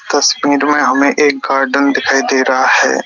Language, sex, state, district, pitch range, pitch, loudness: Hindi, male, Rajasthan, Jaipur, 135-145 Hz, 140 Hz, -12 LUFS